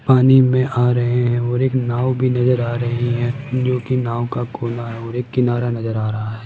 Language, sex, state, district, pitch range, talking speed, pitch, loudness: Hindi, male, Rajasthan, Jaipur, 120-125 Hz, 225 wpm, 120 Hz, -18 LUFS